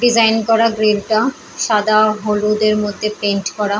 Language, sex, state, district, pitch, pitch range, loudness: Bengali, female, West Bengal, Paschim Medinipur, 215 Hz, 210-225 Hz, -16 LUFS